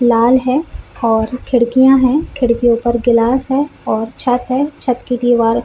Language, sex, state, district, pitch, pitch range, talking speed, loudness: Hindi, female, Jharkhand, Sahebganj, 245 Hz, 235-260 Hz, 170 wpm, -14 LUFS